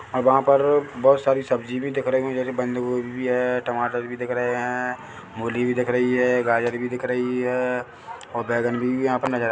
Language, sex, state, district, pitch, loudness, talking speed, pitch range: Hindi, male, Chhattisgarh, Bilaspur, 125 Hz, -23 LUFS, 220 wpm, 120-130 Hz